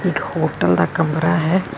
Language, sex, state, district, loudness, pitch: Punjabi, female, Karnataka, Bangalore, -18 LUFS, 160 Hz